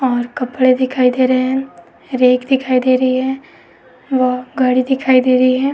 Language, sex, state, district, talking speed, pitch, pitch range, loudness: Hindi, female, Uttar Pradesh, Etah, 175 wpm, 255 Hz, 255-260 Hz, -15 LUFS